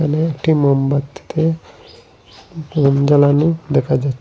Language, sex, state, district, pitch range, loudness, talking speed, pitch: Bengali, male, Assam, Hailakandi, 140-160 Hz, -16 LUFS, 85 wpm, 150 Hz